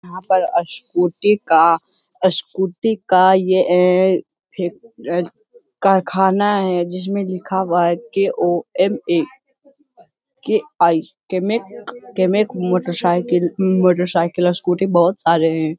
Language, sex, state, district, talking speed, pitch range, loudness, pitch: Hindi, male, Bihar, Jamui, 95 wpm, 175-205 Hz, -17 LUFS, 185 Hz